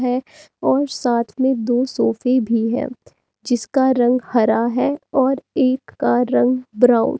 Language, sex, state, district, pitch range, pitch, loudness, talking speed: Hindi, female, Himachal Pradesh, Shimla, 235-265 Hz, 250 Hz, -18 LUFS, 150 wpm